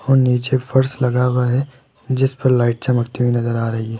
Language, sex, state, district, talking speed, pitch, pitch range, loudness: Hindi, male, Rajasthan, Jaipur, 210 wpm, 125 Hz, 120-130 Hz, -18 LUFS